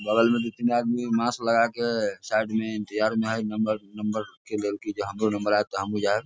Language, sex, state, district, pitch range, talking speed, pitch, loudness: Hindi, male, Bihar, Sitamarhi, 105-115 Hz, 220 wpm, 110 Hz, -26 LUFS